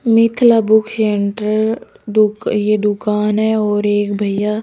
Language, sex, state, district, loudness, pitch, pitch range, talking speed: Hindi, female, Rajasthan, Jaipur, -15 LUFS, 215 Hz, 210-220 Hz, 115 wpm